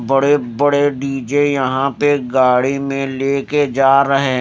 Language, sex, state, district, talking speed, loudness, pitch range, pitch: Hindi, male, Haryana, Rohtak, 150 wpm, -15 LUFS, 135-145 Hz, 135 Hz